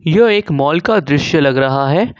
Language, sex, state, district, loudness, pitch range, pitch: Hindi, male, Jharkhand, Ranchi, -13 LUFS, 140-205 Hz, 160 Hz